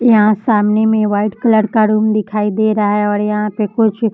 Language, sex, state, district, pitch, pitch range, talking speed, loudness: Hindi, female, Bihar, Darbhanga, 215 Hz, 210-220 Hz, 230 wpm, -14 LUFS